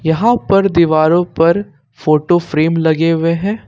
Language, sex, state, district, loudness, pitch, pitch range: Hindi, male, Jharkhand, Ranchi, -13 LUFS, 165 Hz, 160-190 Hz